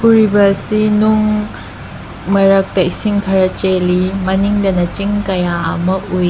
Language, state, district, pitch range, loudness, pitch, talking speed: Manipuri, Manipur, Imphal West, 185-205 Hz, -13 LUFS, 195 Hz, 115 wpm